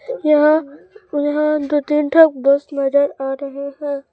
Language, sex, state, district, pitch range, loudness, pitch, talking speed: Hindi, female, Chhattisgarh, Raipur, 280-305 Hz, -17 LUFS, 290 Hz, 145 wpm